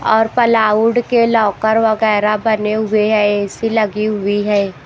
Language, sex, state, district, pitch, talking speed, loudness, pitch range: Hindi, female, Haryana, Jhajjar, 215 Hz, 150 wpm, -14 LUFS, 210-225 Hz